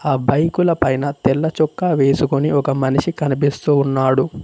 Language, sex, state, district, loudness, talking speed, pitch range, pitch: Telugu, male, Telangana, Mahabubabad, -17 LUFS, 135 wpm, 135-155 Hz, 140 Hz